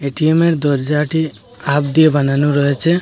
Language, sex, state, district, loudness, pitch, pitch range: Bengali, male, Assam, Hailakandi, -15 LUFS, 145 Hz, 140-160 Hz